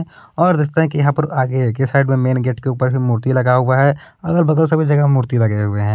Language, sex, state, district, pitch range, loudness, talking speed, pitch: Hindi, male, Jharkhand, Palamu, 130-155 Hz, -16 LUFS, 260 wpm, 135 Hz